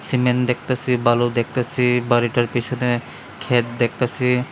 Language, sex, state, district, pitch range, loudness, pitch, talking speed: Bengali, male, Tripura, West Tripura, 120-125 Hz, -20 LUFS, 125 Hz, 105 wpm